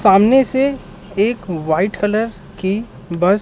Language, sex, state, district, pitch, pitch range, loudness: Hindi, male, Madhya Pradesh, Katni, 200 Hz, 180-225 Hz, -17 LUFS